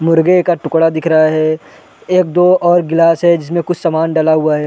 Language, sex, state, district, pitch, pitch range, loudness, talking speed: Hindi, male, Chhattisgarh, Raigarh, 165 Hz, 160-175 Hz, -12 LUFS, 220 wpm